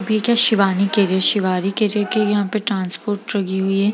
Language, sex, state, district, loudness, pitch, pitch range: Hindi, female, Bihar, Gaya, -17 LUFS, 200 Hz, 195-215 Hz